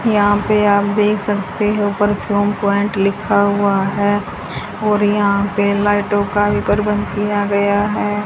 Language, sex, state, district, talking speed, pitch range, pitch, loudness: Hindi, female, Haryana, Charkhi Dadri, 150 wpm, 200-210 Hz, 205 Hz, -16 LUFS